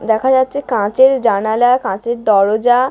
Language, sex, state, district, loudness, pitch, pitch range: Bengali, female, West Bengal, Dakshin Dinajpur, -14 LUFS, 240 Hz, 215-260 Hz